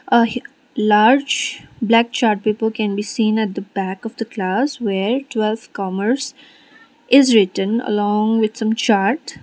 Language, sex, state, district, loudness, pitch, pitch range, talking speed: English, female, Sikkim, Gangtok, -18 LUFS, 225 Hz, 210-255 Hz, 145 wpm